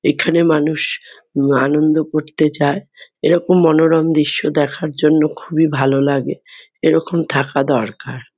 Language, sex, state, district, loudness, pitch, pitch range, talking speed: Bengali, female, West Bengal, Kolkata, -16 LUFS, 155 Hz, 140-160 Hz, 120 wpm